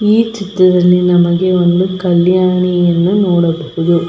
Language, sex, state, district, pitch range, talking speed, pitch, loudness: Kannada, female, Karnataka, Belgaum, 175-185 Hz, 90 wpm, 180 Hz, -11 LUFS